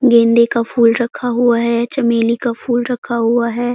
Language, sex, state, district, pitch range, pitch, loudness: Hindi, female, Chhattisgarh, Korba, 235-245 Hz, 235 Hz, -15 LUFS